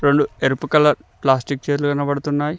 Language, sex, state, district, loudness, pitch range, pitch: Telugu, male, Telangana, Mahabubabad, -19 LUFS, 140-145 Hz, 145 Hz